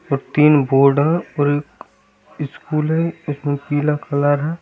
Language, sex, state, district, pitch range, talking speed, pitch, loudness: Hindi, male, Bihar, Bhagalpur, 145-155 Hz, 155 wpm, 145 Hz, -17 LUFS